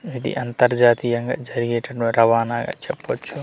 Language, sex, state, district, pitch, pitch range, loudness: Telugu, male, Andhra Pradesh, Manyam, 120 Hz, 115-125 Hz, -20 LUFS